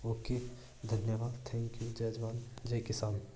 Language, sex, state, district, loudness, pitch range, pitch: Hindi, male, Rajasthan, Churu, -39 LUFS, 115-120 Hz, 115 Hz